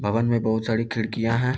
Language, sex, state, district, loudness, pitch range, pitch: Hindi, male, Bihar, Lakhisarai, -24 LUFS, 110-115 Hz, 115 Hz